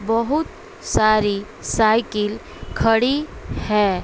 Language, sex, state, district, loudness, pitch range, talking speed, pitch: Hindi, female, Bihar, West Champaran, -20 LUFS, 210-230 Hz, 75 wpm, 215 Hz